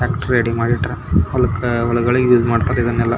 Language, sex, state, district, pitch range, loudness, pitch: Kannada, male, Karnataka, Belgaum, 115-125 Hz, -17 LUFS, 120 Hz